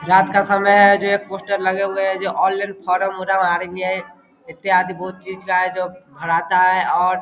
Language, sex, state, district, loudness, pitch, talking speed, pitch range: Hindi, male, Bihar, Vaishali, -18 LUFS, 185 Hz, 140 wpm, 185-195 Hz